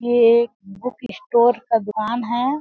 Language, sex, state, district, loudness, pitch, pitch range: Hindi, female, Chhattisgarh, Balrampur, -19 LUFS, 235 Hz, 230-245 Hz